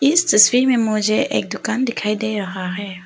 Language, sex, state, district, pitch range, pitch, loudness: Hindi, female, Arunachal Pradesh, Papum Pare, 200-245 Hz, 215 Hz, -17 LUFS